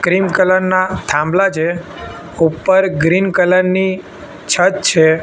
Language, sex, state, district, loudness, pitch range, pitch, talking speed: Gujarati, male, Gujarat, Gandhinagar, -14 LUFS, 165-190 Hz, 185 Hz, 125 wpm